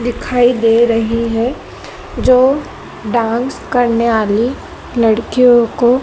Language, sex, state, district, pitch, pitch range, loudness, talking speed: Hindi, female, Madhya Pradesh, Dhar, 235 Hz, 230-245 Hz, -13 LUFS, 100 wpm